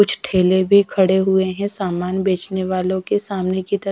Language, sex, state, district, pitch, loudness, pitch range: Hindi, female, Bihar, Katihar, 190 Hz, -18 LUFS, 185-200 Hz